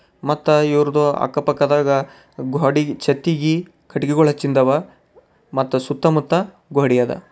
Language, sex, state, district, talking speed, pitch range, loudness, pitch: Kannada, male, Karnataka, Bidar, 100 wpm, 135-150 Hz, -18 LUFS, 145 Hz